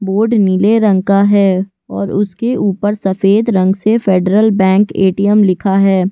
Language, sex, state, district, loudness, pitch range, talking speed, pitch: Hindi, female, Chhattisgarh, Kabirdham, -12 LUFS, 190-210 Hz, 155 wpm, 195 Hz